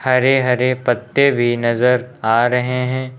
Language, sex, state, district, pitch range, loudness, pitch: Hindi, male, Uttar Pradesh, Lucknow, 120-130 Hz, -16 LUFS, 125 Hz